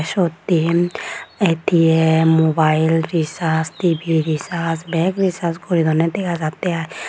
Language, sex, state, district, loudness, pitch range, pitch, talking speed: Chakma, female, Tripura, Unakoti, -18 LUFS, 160-175 Hz, 165 Hz, 120 wpm